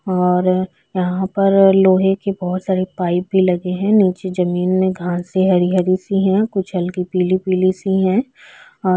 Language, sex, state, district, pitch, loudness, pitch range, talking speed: Hindi, female, Chhattisgarh, Korba, 185 Hz, -17 LUFS, 180-190 Hz, 165 wpm